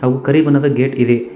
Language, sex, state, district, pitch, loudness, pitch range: Kannada, male, Karnataka, Bangalore, 130 Hz, -14 LUFS, 120-140 Hz